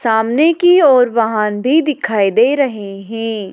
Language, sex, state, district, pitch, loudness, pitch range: Hindi, female, Madhya Pradesh, Dhar, 225 Hz, -13 LUFS, 215-280 Hz